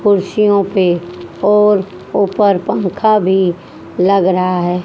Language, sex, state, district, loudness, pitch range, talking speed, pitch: Hindi, female, Haryana, Jhajjar, -13 LUFS, 180-205 Hz, 110 wpm, 190 Hz